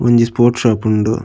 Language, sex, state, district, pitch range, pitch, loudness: Tulu, male, Karnataka, Dakshina Kannada, 110-120 Hz, 115 Hz, -14 LUFS